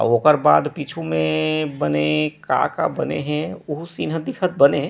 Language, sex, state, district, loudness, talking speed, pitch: Chhattisgarhi, male, Chhattisgarh, Rajnandgaon, -20 LUFS, 185 wpm, 150 Hz